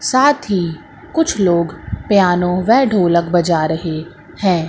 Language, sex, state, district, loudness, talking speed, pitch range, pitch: Hindi, female, Madhya Pradesh, Katni, -15 LUFS, 130 wpm, 170-215 Hz, 180 Hz